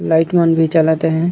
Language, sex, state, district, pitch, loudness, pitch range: Chhattisgarhi, male, Chhattisgarh, Raigarh, 160 Hz, -14 LUFS, 160-165 Hz